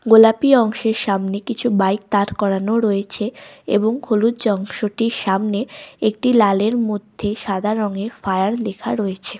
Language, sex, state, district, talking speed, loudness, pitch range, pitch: Bengali, female, West Bengal, Malda, 135 wpm, -18 LUFS, 200-230 Hz, 215 Hz